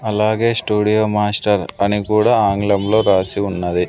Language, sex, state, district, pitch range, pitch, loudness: Telugu, male, Andhra Pradesh, Sri Satya Sai, 100-105 Hz, 105 Hz, -16 LUFS